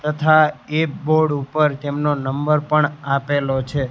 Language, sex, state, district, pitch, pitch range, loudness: Gujarati, male, Gujarat, Gandhinagar, 150 Hz, 140-155 Hz, -19 LUFS